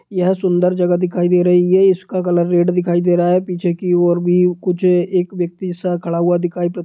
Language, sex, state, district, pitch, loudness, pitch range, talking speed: Hindi, male, Bihar, Sitamarhi, 180 Hz, -16 LUFS, 175-180 Hz, 230 wpm